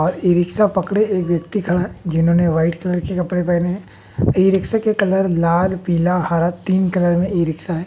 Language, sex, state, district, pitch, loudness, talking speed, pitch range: Hindi, male, Bihar, West Champaran, 180 Hz, -18 LUFS, 205 wpm, 170-190 Hz